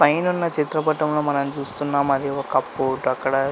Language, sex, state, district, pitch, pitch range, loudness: Telugu, male, Andhra Pradesh, Visakhapatnam, 140 Hz, 135-150 Hz, -22 LUFS